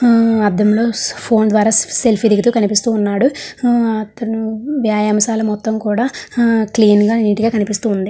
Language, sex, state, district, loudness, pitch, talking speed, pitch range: Telugu, female, Andhra Pradesh, Srikakulam, -15 LUFS, 220 Hz, 150 wpm, 210-230 Hz